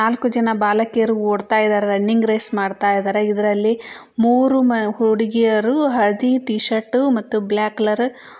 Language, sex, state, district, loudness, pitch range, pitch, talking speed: Kannada, female, Karnataka, Belgaum, -18 LUFS, 210-235 Hz, 220 Hz, 135 wpm